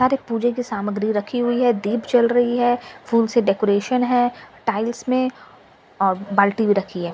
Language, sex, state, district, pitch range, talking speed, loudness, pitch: Hindi, female, Bihar, Katihar, 205-245 Hz, 195 wpm, -20 LUFS, 235 Hz